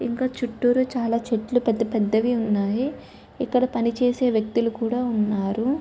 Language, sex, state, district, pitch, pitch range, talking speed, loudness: Telugu, female, Andhra Pradesh, Chittoor, 235 Hz, 225-250 Hz, 135 wpm, -23 LUFS